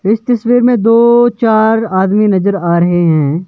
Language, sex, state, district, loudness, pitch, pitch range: Hindi, male, Himachal Pradesh, Shimla, -10 LUFS, 215 Hz, 185-235 Hz